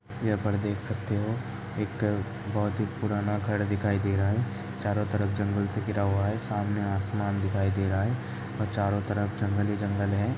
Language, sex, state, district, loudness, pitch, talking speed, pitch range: Hindi, male, Uttar Pradesh, Hamirpur, -29 LUFS, 105 Hz, 200 wpm, 100-105 Hz